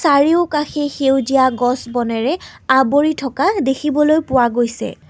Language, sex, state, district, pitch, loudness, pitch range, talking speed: Assamese, female, Assam, Kamrup Metropolitan, 270 Hz, -16 LUFS, 255-300 Hz, 105 wpm